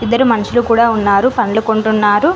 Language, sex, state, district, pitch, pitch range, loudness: Telugu, female, Telangana, Mahabubabad, 225 Hz, 215-240 Hz, -13 LUFS